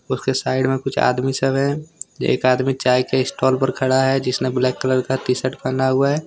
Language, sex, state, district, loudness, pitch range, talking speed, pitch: Hindi, male, Jharkhand, Deoghar, -19 LUFS, 130-135 Hz, 220 wpm, 130 Hz